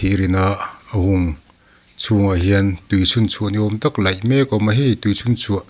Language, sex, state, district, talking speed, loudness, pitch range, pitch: Mizo, male, Mizoram, Aizawl, 180 wpm, -18 LUFS, 95-110 Hz, 100 Hz